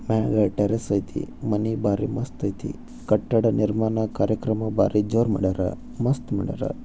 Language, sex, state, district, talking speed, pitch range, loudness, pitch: Kannada, male, Karnataka, Bijapur, 130 wpm, 100-115 Hz, -24 LUFS, 110 Hz